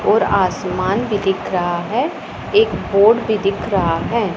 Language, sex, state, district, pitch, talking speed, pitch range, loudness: Hindi, female, Punjab, Pathankot, 195 Hz, 165 wpm, 185-225 Hz, -17 LUFS